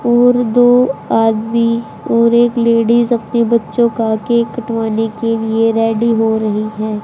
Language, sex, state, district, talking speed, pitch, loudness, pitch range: Hindi, male, Haryana, Rohtak, 145 wpm, 230 Hz, -14 LUFS, 220-235 Hz